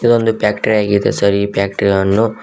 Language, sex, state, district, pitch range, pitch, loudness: Kannada, male, Karnataka, Koppal, 100-110 Hz, 105 Hz, -14 LUFS